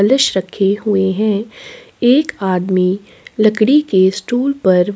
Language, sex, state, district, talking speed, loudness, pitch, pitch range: Hindi, female, Chhattisgarh, Sukma, 120 wpm, -15 LUFS, 205 Hz, 190-250 Hz